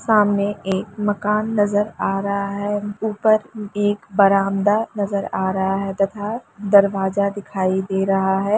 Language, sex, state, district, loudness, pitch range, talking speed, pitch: Hindi, female, Uttar Pradesh, Jalaun, -20 LUFS, 195-210 Hz, 140 wpm, 200 Hz